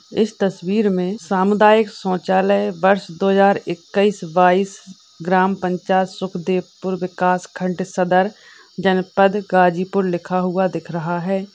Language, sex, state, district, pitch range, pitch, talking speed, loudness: Hindi, female, Uttar Pradesh, Ghazipur, 180-195 Hz, 190 Hz, 120 wpm, -18 LUFS